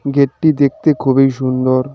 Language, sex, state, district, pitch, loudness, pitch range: Bengali, male, West Bengal, Darjeeling, 135 Hz, -14 LUFS, 130-145 Hz